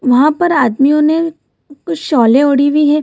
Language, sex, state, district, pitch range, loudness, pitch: Hindi, female, Bihar, Gaya, 275-315 Hz, -12 LUFS, 295 Hz